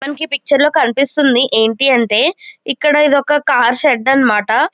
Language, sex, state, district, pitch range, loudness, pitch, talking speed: Telugu, female, Andhra Pradesh, Chittoor, 250-295 Hz, -12 LUFS, 275 Hz, 150 wpm